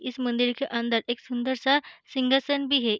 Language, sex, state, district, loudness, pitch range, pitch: Hindi, female, Bihar, Begusarai, -26 LUFS, 240-270 Hz, 255 Hz